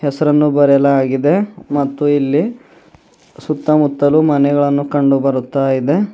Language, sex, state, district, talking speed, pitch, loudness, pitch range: Kannada, male, Karnataka, Bidar, 90 wpm, 145 Hz, -14 LUFS, 140-150 Hz